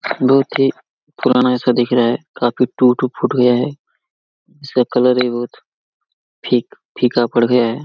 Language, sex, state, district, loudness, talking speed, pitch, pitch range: Hindi, male, Jharkhand, Jamtara, -16 LUFS, 160 wpm, 125 Hz, 120-130 Hz